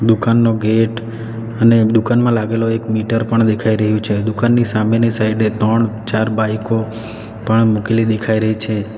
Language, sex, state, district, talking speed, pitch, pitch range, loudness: Gujarati, male, Gujarat, Valsad, 155 wpm, 110 Hz, 110-115 Hz, -15 LUFS